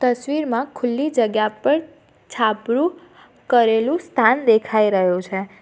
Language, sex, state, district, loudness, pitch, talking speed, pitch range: Gujarati, female, Gujarat, Valsad, -19 LUFS, 240 Hz, 105 wpm, 215-290 Hz